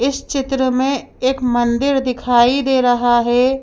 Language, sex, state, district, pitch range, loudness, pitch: Hindi, female, Madhya Pradesh, Bhopal, 245-270 Hz, -16 LUFS, 255 Hz